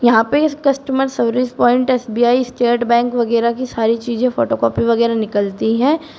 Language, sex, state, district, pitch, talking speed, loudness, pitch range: Hindi, female, Uttar Pradesh, Shamli, 240 Hz, 175 wpm, -16 LUFS, 230-255 Hz